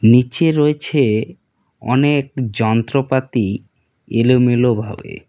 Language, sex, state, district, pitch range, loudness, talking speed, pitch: Bengali, male, West Bengal, Cooch Behar, 115-135 Hz, -16 LUFS, 55 wpm, 125 Hz